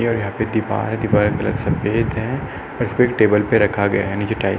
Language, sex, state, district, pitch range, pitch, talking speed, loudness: Hindi, male, Uttar Pradesh, Etah, 100-110 Hz, 105 Hz, 275 wpm, -19 LUFS